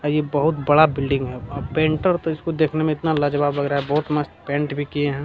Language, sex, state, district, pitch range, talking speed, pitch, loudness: Hindi, male, Bihar, Jamui, 140-155 Hz, 260 wpm, 145 Hz, -21 LUFS